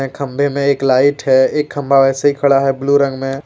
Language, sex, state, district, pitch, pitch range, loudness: Hindi, male, Jharkhand, Deoghar, 140 Hz, 135-140 Hz, -14 LUFS